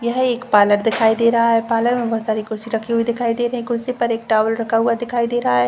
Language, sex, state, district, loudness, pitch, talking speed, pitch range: Hindi, female, Uttar Pradesh, Jalaun, -18 LUFS, 230 Hz, 230 wpm, 225-235 Hz